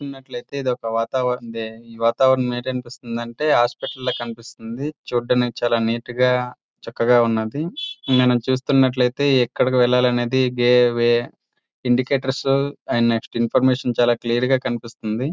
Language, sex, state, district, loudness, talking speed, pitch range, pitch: Telugu, male, Andhra Pradesh, Srikakulam, -20 LUFS, 115 wpm, 120-130 Hz, 125 Hz